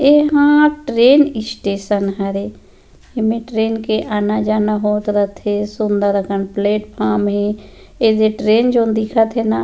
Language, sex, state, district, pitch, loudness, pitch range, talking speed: Chhattisgarhi, female, Chhattisgarh, Rajnandgaon, 215 Hz, -16 LUFS, 205-230 Hz, 125 wpm